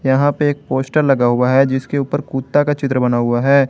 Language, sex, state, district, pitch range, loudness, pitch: Hindi, male, Jharkhand, Garhwa, 130-145 Hz, -16 LUFS, 135 Hz